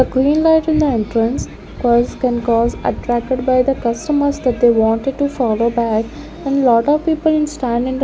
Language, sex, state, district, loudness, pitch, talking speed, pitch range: English, female, Chandigarh, Chandigarh, -16 LUFS, 255 Hz, 210 wpm, 235-285 Hz